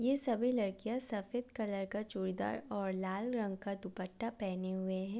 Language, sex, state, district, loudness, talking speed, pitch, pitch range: Hindi, female, Bihar, Gopalganj, -38 LUFS, 175 wpm, 205 Hz, 190-235 Hz